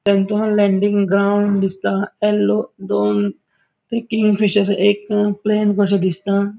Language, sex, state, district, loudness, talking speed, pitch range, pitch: Konkani, male, Goa, North and South Goa, -17 LUFS, 100 wpm, 200-210 Hz, 205 Hz